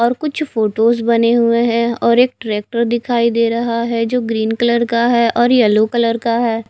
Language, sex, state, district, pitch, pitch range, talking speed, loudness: Hindi, female, Odisha, Nuapada, 235 Hz, 230-235 Hz, 205 wpm, -15 LUFS